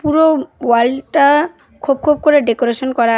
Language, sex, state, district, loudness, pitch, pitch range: Bengali, female, West Bengal, Cooch Behar, -14 LUFS, 280 Hz, 240-300 Hz